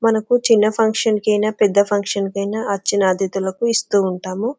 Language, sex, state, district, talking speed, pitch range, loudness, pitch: Telugu, female, Telangana, Karimnagar, 170 wpm, 200-225 Hz, -18 LUFS, 210 Hz